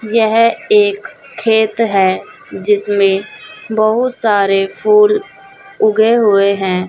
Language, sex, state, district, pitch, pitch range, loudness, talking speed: Hindi, female, Chhattisgarh, Raipur, 220 Hz, 200-255 Hz, -12 LUFS, 95 wpm